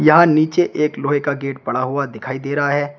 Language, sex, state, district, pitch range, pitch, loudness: Hindi, male, Uttar Pradesh, Shamli, 135-150 Hz, 145 Hz, -18 LUFS